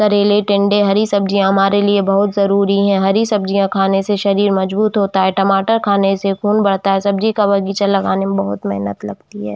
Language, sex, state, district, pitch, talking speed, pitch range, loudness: Hindi, female, Jharkhand, Jamtara, 200 Hz, 200 wpm, 195-205 Hz, -15 LUFS